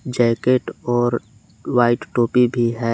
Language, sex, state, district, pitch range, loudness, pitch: Hindi, male, Jharkhand, Palamu, 120-125 Hz, -19 LUFS, 120 Hz